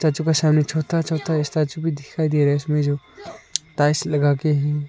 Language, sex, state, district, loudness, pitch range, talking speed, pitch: Hindi, male, Arunachal Pradesh, Lower Dibang Valley, -21 LUFS, 145-160 Hz, 210 wpm, 150 Hz